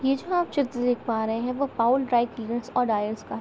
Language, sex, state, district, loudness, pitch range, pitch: Hindi, female, Uttar Pradesh, Gorakhpur, -26 LUFS, 230-270 Hz, 245 Hz